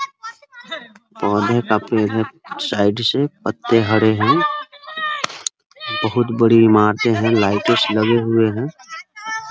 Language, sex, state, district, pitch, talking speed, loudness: Hindi, male, Bihar, Muzaffarpur, 115 Hz, 120 wpm, -17 LUFS